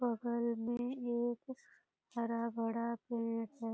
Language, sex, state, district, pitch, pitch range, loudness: Hindi, female, Bihar, Purnia, 235 Hz, 230-240 Hz, -39 LUFS